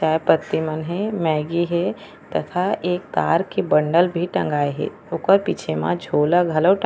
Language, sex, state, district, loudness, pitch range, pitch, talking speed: Chhattisgarhi, female, Chhattisgarh, Raigarh, -21 LUFS, 155-180 Hz, 170 Hz, 185 wpm